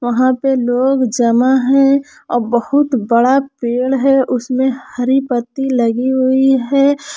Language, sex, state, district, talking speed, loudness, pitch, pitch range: Hindi, female, Jharkhand, Palamu, 135 wpm, -14 LUFS, 260 Hz, 245-270 Hz